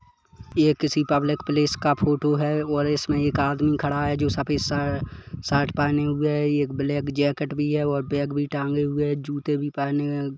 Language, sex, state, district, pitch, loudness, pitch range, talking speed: Hindi, male, Chhattisgarh, Kabirdham, 145 Hz, -24 LUFS, 140-150 Hz, 185 wpm